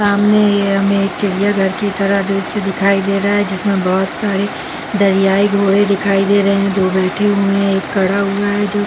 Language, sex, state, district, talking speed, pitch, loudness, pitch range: Hindi, female, Chhattisgarh, Bilaspur, 205 wpm, 200 Hz, -14 LUFS, 195-205 Hz